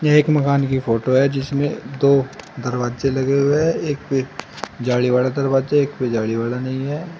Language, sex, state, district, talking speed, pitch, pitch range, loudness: Hindi, male, Uttar Pradesh, Shamli, 190 wpm, 135 Hz, 125-145 Hz, -19 LUFS